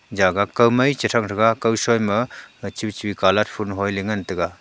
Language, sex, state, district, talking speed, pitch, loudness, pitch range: Wancho, male, Arunachal Pradesh, Longding, 145 wpm, 105 Hz, -20 LUFS, 100-115 Hz